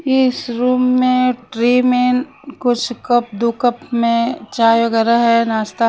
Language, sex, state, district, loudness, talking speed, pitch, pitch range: Hindi, female, Haryana, Charkhi Dadri, -16 LUFS, 145 wpm, 245 Hz, 230-250 Hz